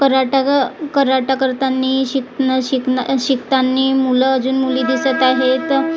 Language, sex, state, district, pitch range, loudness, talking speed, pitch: Marathi, female, Maharashtra, Gondia, 260-270 Hz, -16 LUFS, 170 wpm, 265 Hz